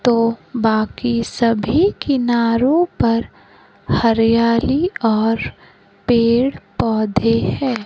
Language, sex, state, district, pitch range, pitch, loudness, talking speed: Hindi, female, Maharashtra, Gondia, 225-250 Hz, 230 Hz, -17 LUFS, 75 wpm